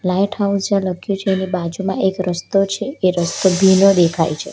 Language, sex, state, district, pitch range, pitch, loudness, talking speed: Gujarati, female, Gujarat, Valsad, 180-195 Hz, 190 Hz, -17 LUFS, 200 wpm